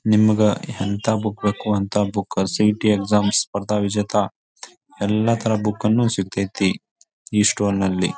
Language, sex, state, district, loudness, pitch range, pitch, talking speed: Kannada, male, Karnataka, Bijapur, -20 LUFS, 100-110 Hz, 105 Hz, 130 wpm